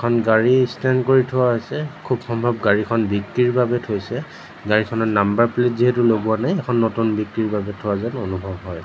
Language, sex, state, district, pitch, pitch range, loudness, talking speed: Assamese, male, Assam, Sonitpur, 115 Hz, 105-125 Hz, -19 LUFS, 175 wpm